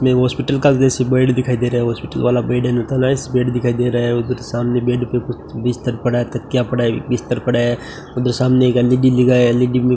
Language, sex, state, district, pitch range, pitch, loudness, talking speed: Hindi, male, Rajasthan, Bikaner, 120-125 Hz, 125 Hz, -17 LUFS, 235 wpm